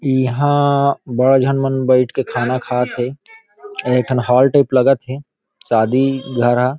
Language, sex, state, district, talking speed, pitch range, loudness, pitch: Chhattisgarhi, male, Chhattisgarh, Rajnandgaon, 170 wpm, 125-135 Hz, -16 LUFS, 130 Hz